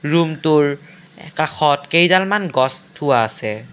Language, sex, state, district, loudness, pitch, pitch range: Assamese, male, Assam, Kamrup Metropolitan, -17 LUFS, 155 Hz, 145-175 Hz